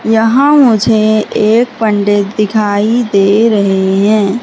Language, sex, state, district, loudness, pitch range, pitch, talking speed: Hindi, female, Madhya Pradesh, Katni, -10 LUFS, 205-225 Hz, 215 Hz, 110 wpm